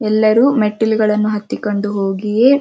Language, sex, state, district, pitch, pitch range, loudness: Kannada, female, Karnataka, Dharwad, 215 Hz, 210-220 Hz, -15 LUFS